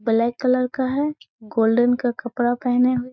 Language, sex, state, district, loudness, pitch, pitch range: Hindi, female, Bihar, Gaya, -21 LUFS, 245 Hz, 235-255 Hz